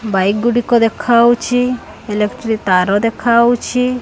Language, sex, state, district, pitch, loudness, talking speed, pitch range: Odia, female, Odisha, Khordha, 235 Hz, -14 LUFS, 90 wpm, 210-240 Hz